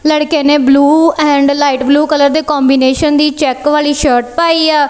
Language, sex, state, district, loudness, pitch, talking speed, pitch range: Punjabi, female, Punjab, Kapurthala, -10 LUFS, 295 Hz, 185 wpm, 280-305 Hz